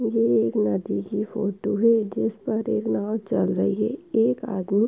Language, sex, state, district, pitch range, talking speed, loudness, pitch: Hindi, female, Uttar Pradesh, Etah, 200-230 Hz, 185 wpm, -24 LUFS, 220 Hz